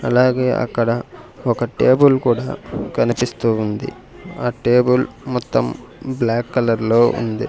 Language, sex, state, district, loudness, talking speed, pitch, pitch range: Telugu, male, Andhra Pradesh, Sri Satya Sai, -18 LUFS, 110 wpm, 120 Hz, 115-125 Hz